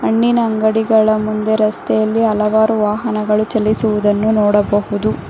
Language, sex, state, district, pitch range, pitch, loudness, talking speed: Kannada, female, Karnataka, Bangalore, 210-220 Hz, 215 Hz, -15 LUFS, 90 wpm